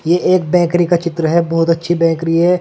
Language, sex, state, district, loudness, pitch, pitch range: Hindi, male, Uttar Pradesh, Saharanpur, -14 LUFS, 170 Hz, 165-175 Hz